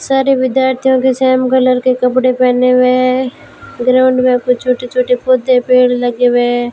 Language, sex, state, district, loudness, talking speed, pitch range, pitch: Hindi, female, Rajasthan, Bikaner, -12 LUFS, 180 wpm, 250-255 Hz, 255 Hz